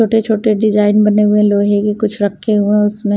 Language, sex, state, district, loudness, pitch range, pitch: Hindi, female, Punjab, Kapurthala, -13 LUFS, 205-215 Hz, 210 Hz